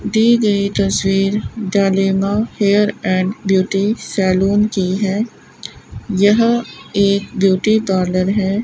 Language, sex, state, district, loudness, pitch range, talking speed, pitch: Hindi, female, Rajasthan, Bikaner, -16 LUFS, 195-210 Hz, 105 wpm, 200 Hz